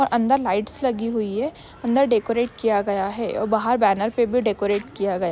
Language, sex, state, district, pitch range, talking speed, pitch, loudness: Hindi, female, Maharashtra, Chandrapur, 205-240 Hz, 225 wpm, 225 Hz, -22 LUFS